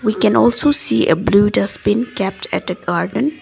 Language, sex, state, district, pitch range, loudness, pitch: English, female, Assam, Kamrup Metropolitan, 195-245 Hz, -14 LUFS, 205 Hz